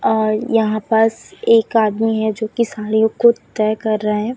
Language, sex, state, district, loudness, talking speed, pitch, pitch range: Hindi, female, Chhattisgarh, Raipur, -17 LUFS, 190 wpm, 220 Hz, 215-225 Hz